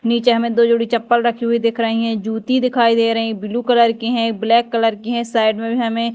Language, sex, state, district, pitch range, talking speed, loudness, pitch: Hindi, female, Madhya Pradesh, Dhar, 225-235 Hz, 265 wpm, -17 LUFS, 230 Hz